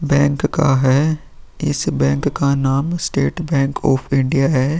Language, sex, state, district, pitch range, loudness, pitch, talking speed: Hindi, male, Bihar, Vaishali, 135-150 Hz, -17 LUFS, 140 Hz, 150 wpm